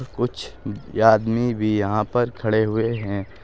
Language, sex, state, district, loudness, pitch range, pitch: Hindi, male, Uttar Pradesh, Shamli, -21 LUFS, 105-120 Hz, 110 Hz